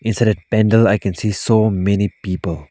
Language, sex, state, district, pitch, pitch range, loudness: English, male, Arunachal Pradesh, Lower Dibang Valley, 105 Hz, 95-110 Hz, -17 LUFS